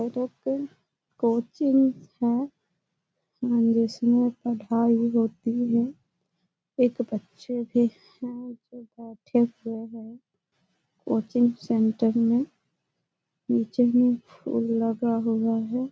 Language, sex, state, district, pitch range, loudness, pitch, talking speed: Hindi, female, Bihar, Jahanabad, 225-245 Hz, -25 LUFS, 235 Hz, 85 wpm